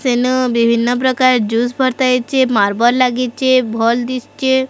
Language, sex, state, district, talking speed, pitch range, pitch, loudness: Odia, female, Odisha, Sambalpur, 100 wpm, 235-260 Hz, 250 Hz, -14 LUFS